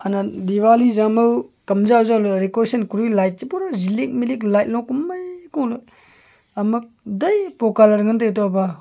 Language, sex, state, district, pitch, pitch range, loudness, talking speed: Wancho, male, Arunachal Pradesh, Longding, 225 Hz, 200-245 Hz, -18 LUFS, 110 wpm